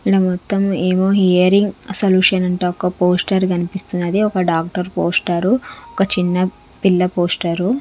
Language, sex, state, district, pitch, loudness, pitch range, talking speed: Telugu, female, Andhra Pradesh, Sri Satya Sai, 185 Hz, -16 LUFS, 180-195 Hz, 125 wpm